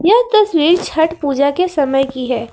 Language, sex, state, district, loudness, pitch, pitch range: Hindi, female, Jharkhand, Ranchi, -14 LUFS, 315 Hz, 270-365 Hz